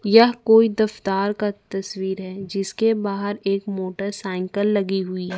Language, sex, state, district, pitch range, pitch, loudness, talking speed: Hindi, female, Jharkhand, Ranchi, 190-210 Hz, 200 Hz, -21 LUFS, 145 wpm